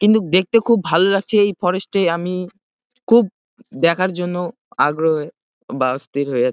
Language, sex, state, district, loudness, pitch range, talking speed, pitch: Bengali, male, West Bengal, Jalpaiguri, -18 LUFS, 165-205 Hz, 165 wpm, 185 Hz